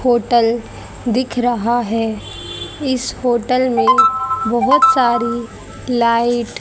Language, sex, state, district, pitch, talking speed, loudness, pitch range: Hindi, female, Haryana, Charkhi Dadri, 245 Hz, 100 wpm, -16 LUFS, 235-255 Hz